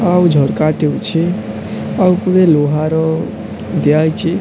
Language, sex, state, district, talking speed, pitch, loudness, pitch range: Odia, male, Odisha, Sambalpur, 120 wpm, 165 Hz, -14 LUFS, 155-180 Hz